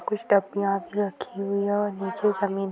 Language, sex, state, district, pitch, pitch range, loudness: Hindi, female, Bihar, East Champaran, 200 Hz, 195-205 Hz, -26 LUFS